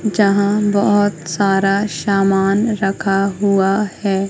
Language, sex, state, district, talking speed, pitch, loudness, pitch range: Hindi, female, Madhya Pradesh, Katni, 95 wpm, 200 Hz, -16 LUFS, 195-205 Hz